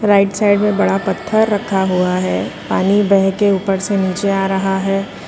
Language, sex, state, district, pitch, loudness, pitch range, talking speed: Hindi, female, Gujarat, Valsad, 195 Hz, -15 LUFS, 190-205 Hz, 195 wpm